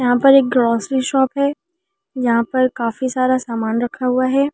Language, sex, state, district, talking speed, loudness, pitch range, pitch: Hindi, female, Delhi, New Delhi, 170 wpm, -17 LUFS, 245-275 Hz, 255 Hz